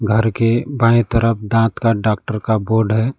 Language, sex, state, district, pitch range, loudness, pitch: Hindi, male, West Bengal, Alipurduar, 110-115 Hz, -16 LUFS, 115 Hz